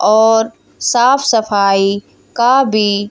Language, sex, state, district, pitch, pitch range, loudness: Hindi, female, Haryana, Jhajjar, 220 Hz, 205-240 Hz, -13 LUFS